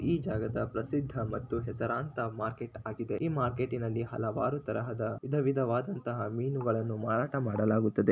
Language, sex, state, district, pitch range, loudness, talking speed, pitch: Kannada, male, Karnataka, Shimoga, 110-130 Hz, -33 LUFS, 125 wpm, 115 Hz